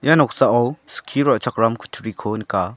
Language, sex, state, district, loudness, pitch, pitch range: Garo, male, Meghalaya, South Garo Hills, -19 LUFS, 115 Hz, 110-120 Hz